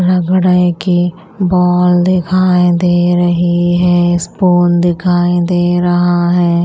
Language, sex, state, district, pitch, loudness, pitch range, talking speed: Hindi, female, Punjab, Pathankot, 175 Hz, -11 LUFS, 175-180 Hz, 110 wpm